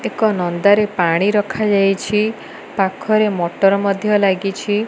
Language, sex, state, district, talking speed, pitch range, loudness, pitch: Odia, female, Odisha, Malkangiri, 110 wpm, 195-210 Hz, -16 LUFS, 200 Hz